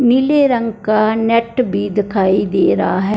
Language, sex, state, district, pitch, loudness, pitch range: Hindi, male, Punjab, Fazilka, 220 Hz, -15 LUFS, 205-245 Hz